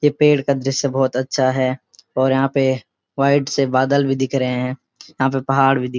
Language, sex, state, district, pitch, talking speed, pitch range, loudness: Hindi, male, Uttarakhand, Uttarkashi, 135 Hz, 230 wpm, 130-135 Hz, -18 LUFS